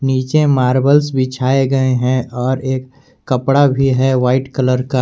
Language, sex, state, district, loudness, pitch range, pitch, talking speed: Hindi, male, Jharkhand, Garhwa, -15 LUFS, 130-135 Hz, 130 Hz, 155 wpm